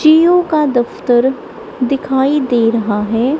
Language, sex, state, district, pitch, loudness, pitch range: Hindi, female, Punjab, Kapurthala, 265 Hz, -14 LUFS, 240-295 Hz